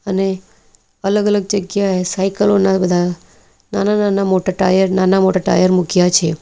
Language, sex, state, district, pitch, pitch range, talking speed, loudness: Gujarati, female, Gujarat, Valsad, 190 Hz, 185-200 Hz, 150 wpm, -15 LUFS